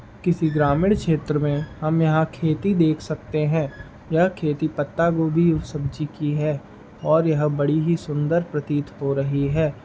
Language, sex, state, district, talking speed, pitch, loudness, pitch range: Hindi, male, Uttar Pradesh, Budaun, 165 wpm, 155 Hz, -22 LUFS, 145-160 Hz